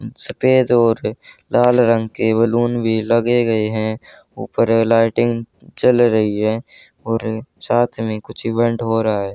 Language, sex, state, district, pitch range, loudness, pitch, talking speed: Hindi, male, Haryana, Charkhi Dadri, 110-120 Hz, -17 LUFS, 115 Hz, 155 wpm